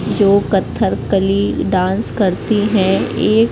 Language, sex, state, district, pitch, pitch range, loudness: Hindi, female, Madhya Pradesh, Katni, 200 Hz, 195-210 Hz, -15 LUFS